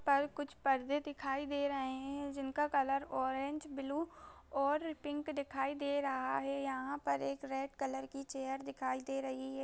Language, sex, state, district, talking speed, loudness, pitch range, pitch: Hindi, female, Chhattisgarh, Rajnandgaon, 175 wpm, -38 LUFS, 270-285 Hz, 275 Hz